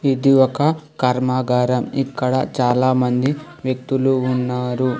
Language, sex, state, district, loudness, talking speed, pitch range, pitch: Telugu, male, Telangana, Hyderabad, -18 LUFS, 85 wpm, 125-135 Hz, 130 Hz